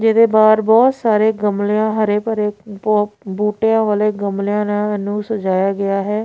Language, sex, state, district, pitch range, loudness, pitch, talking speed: Punjabi, female, Punjab, Pathankot, 205-220 Hz, -16 LUFS, 210 Hz, 165 wpm